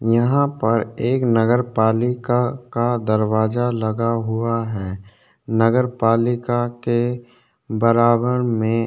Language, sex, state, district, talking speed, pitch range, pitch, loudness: Hindi, male, Chhattisgarh, Korba, 95 wpm, 115-120 Hz, 115 Hz, -19 LUFS